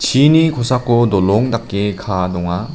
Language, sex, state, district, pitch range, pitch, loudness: Garo, male, Meghalaya, South Garo Hills, 95-125 Hz, 115 Hz, -15 LUFS